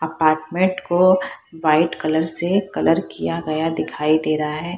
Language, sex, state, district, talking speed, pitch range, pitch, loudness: Hindi, female, Bihar, Purnia, 150 wpm, 155-175 Hz, 160 Hz, -19 LUFS